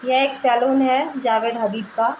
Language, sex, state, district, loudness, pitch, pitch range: Hindi, female, Bihar, Gopalganj, -19 LUFS, 250 Hz, 230-265 Hz